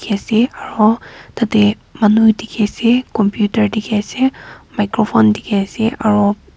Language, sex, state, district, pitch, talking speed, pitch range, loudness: Nagamese, female, Nagaland, Kohima, 215 Hz, 130 wpm, 210-225 Hz, -15 LUFS